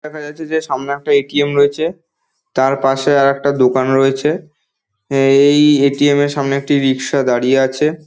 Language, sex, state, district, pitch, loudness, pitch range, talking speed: Bengali, male, West Bengal, Dakshin Dinajpur, 140 Hz, -14 LUFS, 135-150 Hz, 165 wpm